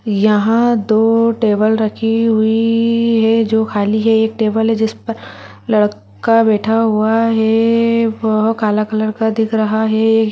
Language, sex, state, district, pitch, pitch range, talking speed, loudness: Hindi, female, Chhattisgarh, Sarguja, 220 Hz, 215-225 Hz, 145 wpm, -14 LUFS